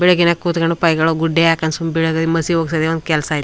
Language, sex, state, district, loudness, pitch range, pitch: Kannada, female, Karnataka, Chamarajanagar, -16 LUFS, 160-165 Hz, 165 Hz